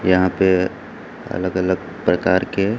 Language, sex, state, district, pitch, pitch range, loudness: Hindi, male, Chhattisgarh, Raipur, 95 Hz, 90-95 Hz, -19 LUFS